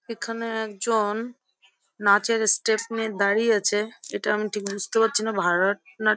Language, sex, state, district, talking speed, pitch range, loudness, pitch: Bengali, female, West Bengal, Jhargram, 125 wpm, 200-225 Hz, -24 LUFS, 215 Hz